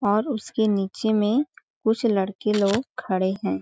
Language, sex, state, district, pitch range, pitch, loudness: Hindi, female, Chhattisgarh, Balrampur, 195-225 Hz, 210 Hz, -24 LUFS